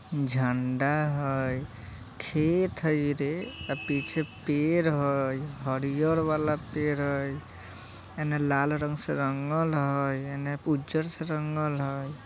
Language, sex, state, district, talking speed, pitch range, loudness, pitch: Bajjika, male, Bihar, Vaishali, 115 wpm, 135-150 Hz, -29 LUFS, 145 Hz